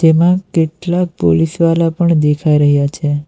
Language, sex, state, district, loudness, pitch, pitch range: Gujarati, male, Gujarat, Valsad, -13 LUFS, 160 Hz, 145-170 Hz